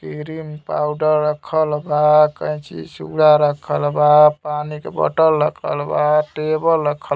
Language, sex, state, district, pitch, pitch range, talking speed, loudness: Bhojpuri, male, Uttar Pradesh, Gorakhpur, 150 Hz, 150-155 Hz, 145 wpm, -17 LUFS